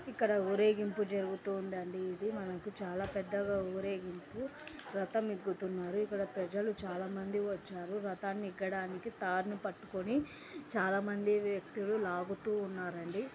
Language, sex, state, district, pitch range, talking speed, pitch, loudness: Telugu, female, Andhra Pradesh, Anantapur, 190-210 Hz, 115 wpm, 195 Hz, -37 LUFS